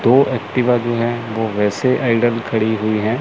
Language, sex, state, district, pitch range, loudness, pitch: Hindi, male, Chandigarh, Chandigarh, 110-120 Hz, -17 LUFS, 115 Hz